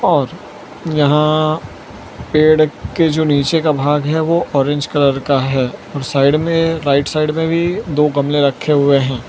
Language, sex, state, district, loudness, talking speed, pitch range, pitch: Hindi, male, Gujarat, Valsad, -15 LUFS, 170 wpm, 140-155 Hz, 150 Hz